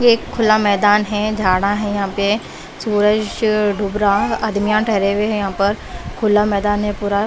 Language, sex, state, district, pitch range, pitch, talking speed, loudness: Hindi, female, Bihar, West Champaran, 200-215 Hz, 210 Hz, 180 wpm, -17 LUFS